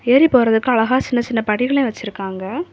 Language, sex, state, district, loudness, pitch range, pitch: Tamil, female, Tamil Nadu, Kanyakumari, -17 LUFS, 220-260 Hz, 240 Hz